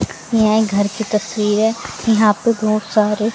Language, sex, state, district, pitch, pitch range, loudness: Hindi, female, Haryana, Rohtak, 215 Hz, 210-220 Hz, -17 LUFS